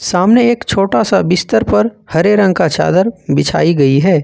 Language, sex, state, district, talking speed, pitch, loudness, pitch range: Hindi, male, Jharkhand, Ranchi, 185 wpm, 190 Hz, -12 LUFS, 170-210 Hz